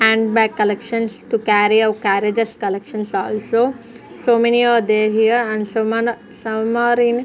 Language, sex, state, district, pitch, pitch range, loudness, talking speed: English, female, Punjab, Fazilka, 225 Hz, 215-235 Hz, -17 LUFS, 165 wpm